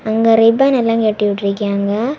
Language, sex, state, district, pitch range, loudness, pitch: Tamil, female, Tamil Nadu, Kanyakumari, 205-230 Hz, -14 LUFS, 220 Hz